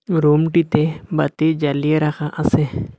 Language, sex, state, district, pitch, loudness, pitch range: Bengali, male, Assam, Hailakandi, 155 Hz, -18 LUFS, 150-160 Hz